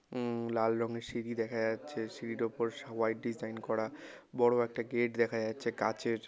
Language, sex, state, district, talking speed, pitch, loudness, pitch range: Bengali, male, West Bengal, North 24 Parganas, 170 wpm, 115 Hz, -35 LUFS, 110-120 Hz